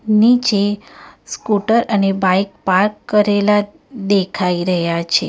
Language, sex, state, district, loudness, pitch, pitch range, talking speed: Gujarati, female, Gujarat, Valsad, -16 LUFS, 205 Hz, 190-210 Hz, 100 wpm